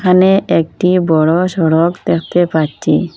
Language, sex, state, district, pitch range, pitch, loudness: Bengali, female, Assam, Hailakandi, 165-180 Hz, 175 Hz, -13 LUFS